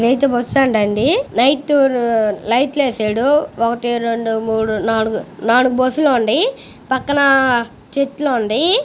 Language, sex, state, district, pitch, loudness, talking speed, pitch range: Telugu, female, Andhra Pradesh, Guntur, 245 Hz, -16 LUFS, 130 wpm, 225-275 Hz